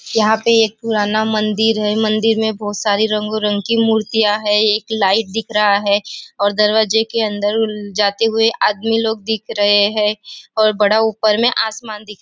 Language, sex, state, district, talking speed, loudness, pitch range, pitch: Hindi, female, Maharashtra, Nagpur, 180 wpm, -16 LUFS, 210-220 Hz, 215 Hz